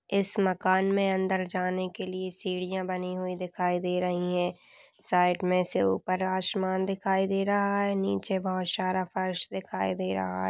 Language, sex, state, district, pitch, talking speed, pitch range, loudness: Hindi, female, Uttarakhand, Uttarkashi, 185 Hz, 185 wpm, 180-190 Hz, -29 LUFS